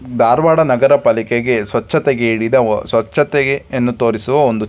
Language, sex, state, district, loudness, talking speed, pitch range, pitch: Kannada, male, Karnataka, Dharwad, -14 LUFS, 130 wpm, 115-140 Hz, 125 Hz